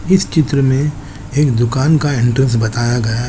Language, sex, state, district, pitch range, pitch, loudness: Hindi, male, Chandigarh, Chandigarh, 120-145 Hz, 130 Hz, -15 LUFS